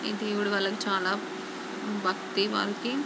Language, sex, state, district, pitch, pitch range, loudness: Telugu, female, Andhra Pradesh, Guntur, 205 Hz, 195-210 Hz, -29 LUFS